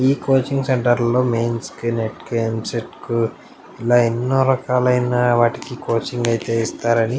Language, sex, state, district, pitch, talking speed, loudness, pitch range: Telugu, male, Andhra Pradesh, Anantapur, 120 Hz, 135 wpm, -19 LUFS, 115-125 Hz